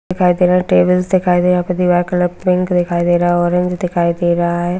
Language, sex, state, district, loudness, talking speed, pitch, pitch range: Hindi, female, Bihar, Araria, -14 LUFS, 275 wpm, 180 Hz, 175-180 Hz